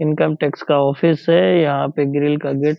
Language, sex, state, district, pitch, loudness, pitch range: Hindi, male, Bihar, Purnia, 150 Hz, -17 LUFS, 145-160 Hz